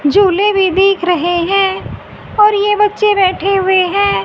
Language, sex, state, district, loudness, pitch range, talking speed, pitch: Hindi, female, Haryana, Rohtak, -12 LUFS, 365-410 Hz, 155 wpm, 390 Hz